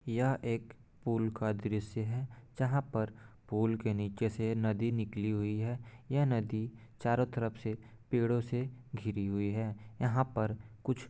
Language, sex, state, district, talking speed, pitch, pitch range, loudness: Hindi, male, Bihar, Gopalganj, 155 wpm, 115 Hz, 110-125 Hz, -35 LUFS